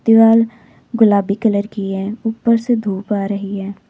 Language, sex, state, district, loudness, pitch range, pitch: Hindi, female, Uttar Pradesh, Lalitpur, -16 LUFS, 200-225 Hz, 210 Hz